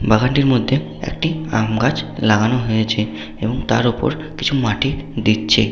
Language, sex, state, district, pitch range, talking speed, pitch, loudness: Bengali, male, West Bengal, Paschim Medinipur, 110-135 Hz, 125 wpm, 115 Hz, -18 LUFS